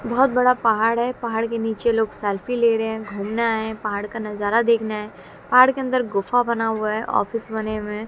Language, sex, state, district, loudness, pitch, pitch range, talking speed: Hindi, female, Bihar, West Champaran, -21 LUFS, 225 Hz, 215-235 Hz, 230 wpm